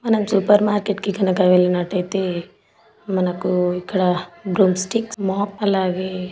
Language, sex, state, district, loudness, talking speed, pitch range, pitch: Telugu, female, Telangana, Nalgonda, -20 LUFS, 105 wpm, 180-205 Hz, 190 Hz